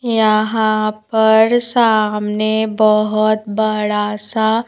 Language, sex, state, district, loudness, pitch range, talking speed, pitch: Hindi, female, Madhya Pradesh, Bhopal, -15 LUFS, 215-220 Hz, 75 wpm, 215 Hz